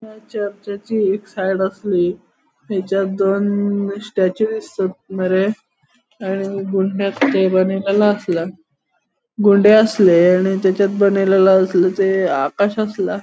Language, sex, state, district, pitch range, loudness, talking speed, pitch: Konkani, male, Goa, North and South Goa, 190-205 Hz, -17 LUFS, 75 wpm, 195 Hz